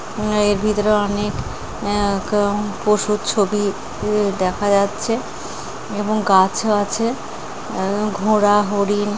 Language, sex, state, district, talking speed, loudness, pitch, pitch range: Bengali, female, West Bengal, Jalpaiguri, 90 wpm, -19 LUFS, 205 Hz, 205-210 Hz